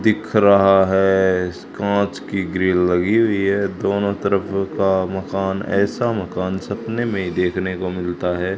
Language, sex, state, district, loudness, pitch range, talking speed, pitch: Hindi, male, Haryana, Charkhi Dadri, -19 LUFS, 90-100 Hz, 155 wpm, 95 Hz